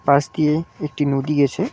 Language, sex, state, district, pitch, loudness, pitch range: Bengali, male, West Bengal, Cooch Behar, 150 Hz, -20 LUFS, 140-155 Hz